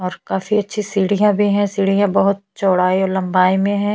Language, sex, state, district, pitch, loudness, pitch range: Hindi, female, Chhattisgarh, Bastar, 195 Hz, -17 LUFS, 190-205 Hz